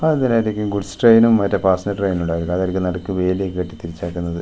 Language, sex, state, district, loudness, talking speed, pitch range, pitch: Malayalam, male, Kerala, Wayanad, -18 LUFS, 175 wpm, 90-105 Hz, 95 Hz